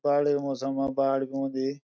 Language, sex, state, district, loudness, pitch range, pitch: Garhwali, male, Uttarakhand, Uttarkashi, -27 LUFS, 135-140 Hz, 135 Hz